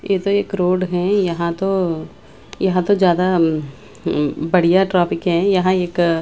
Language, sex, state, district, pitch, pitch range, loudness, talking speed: Hindi, female, Bihar, Patna, 180 Hz, 170-190 Hz, -18 LUFS, 155 wpm